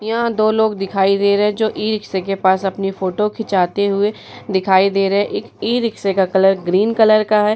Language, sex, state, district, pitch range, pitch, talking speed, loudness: Hindi, female, Bihar, Vaishali, 195-215 Hz, 200 Hz, 215 wpm, -16 LUFS